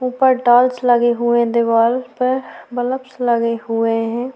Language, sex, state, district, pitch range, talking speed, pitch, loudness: Hindi, female, Chhattisgarh, Sukma, 235-255 Hz, 140 wpm, 240 Hz, -16 LUFS